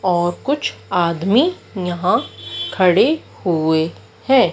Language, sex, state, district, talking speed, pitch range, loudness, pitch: Hindi, female, Madhya Pradesh, Dhar, 95 wpm, 165-225 Hz, -18 LUFS, 180 Hz